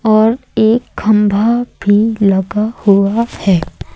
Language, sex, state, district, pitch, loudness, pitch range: Hindi, female, Madhya Pradesh, Umaria, 215 Hz, -13 LUFS, 200-225 Hz